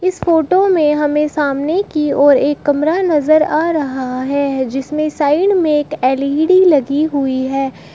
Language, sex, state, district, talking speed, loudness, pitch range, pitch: Hindi, female, Uttar Pradesh, Shamli, 160 wpm, -14 LUFS, 275-315 Hz, 295 Hz